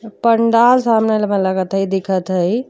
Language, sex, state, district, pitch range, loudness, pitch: Bhojpuri, female, Uttar Pradesh, Deoria, 190-230 Hz, -15 LUFS, 215 Hz